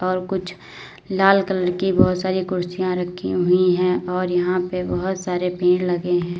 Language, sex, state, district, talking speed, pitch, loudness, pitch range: Hindi, female, Uttar Pradesh, Lalitpur, 180 wpm, 180 Hz, -20 LUFS, 180-185 Hz